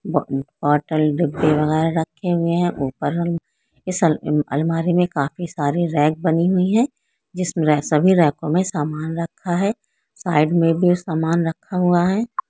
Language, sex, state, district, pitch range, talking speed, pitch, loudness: Hindi, female, Andhra Pradesh, Chittoor, 150-180 Hz, 150 wpm, 165 Hz, -20 LUFS